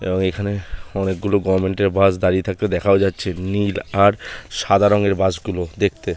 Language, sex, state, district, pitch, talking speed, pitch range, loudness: Bengali, male, West Bengal, Malda, 95 Hz, 145 wpm, 95-100 Hz, -19 LUFS